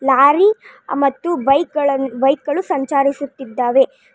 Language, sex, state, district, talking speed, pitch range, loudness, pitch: Kannada, female, Karnataka, Bangalore, 100 wpm, 270-305 Hz, -16 LUFS, 275 Hz